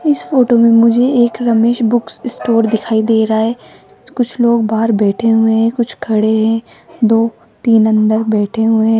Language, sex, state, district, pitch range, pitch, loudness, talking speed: Hindi, female, Rajasthan, Jaipur, 220-235 Hz, 225 Hz, -13 LUFS, 180 wpm